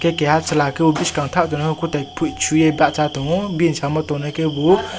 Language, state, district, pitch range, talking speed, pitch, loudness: Kokborok, Tripura, West Tripura, 150-165 Hz, 215 wpm, 155 Hz, -18 LUFS